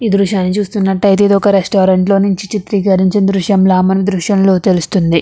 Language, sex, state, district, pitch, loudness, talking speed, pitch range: Telugu, female, Andhra Pradesh, Krishna, 195 Hz, -12 LUFS, 140 wpm, 190-200 Hz